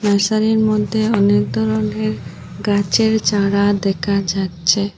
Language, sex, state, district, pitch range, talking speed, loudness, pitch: Bengali, female, Assam, Hailakandi, 170-210 Hz, 95 wpm, -17 LUFS, 200 Hz